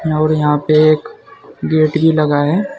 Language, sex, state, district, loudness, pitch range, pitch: Hindi, male, Uttar Pradesh, Saharanpur, -13 LUFS, 155-160 Hz, 155 Hz